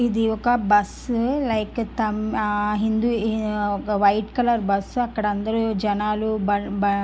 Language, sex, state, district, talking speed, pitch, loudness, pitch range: Telugu, female, Andhra Pradesh, Guntur, 145 wpm, 215 Hz, -22 LUFS, 205-225 Hz